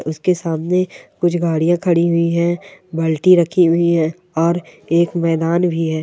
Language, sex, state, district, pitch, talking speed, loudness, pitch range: Hindi, male, Chhattisgarh, Sukma, 170 Hz, 160 wpm, -17 LUFS, 165-175 Hz